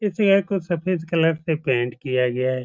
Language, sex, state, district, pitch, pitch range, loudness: Hindi, male, Uttar Pradesh, Etah, 165 Hz, 130-185 Hz, -22 LUFS